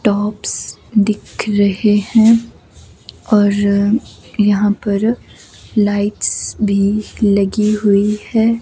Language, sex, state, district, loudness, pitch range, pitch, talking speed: Hindi, female, Himachal Pradesh, Shimla, -15 LUFS, 205-215 Hz, 210 Hz, 85 wpm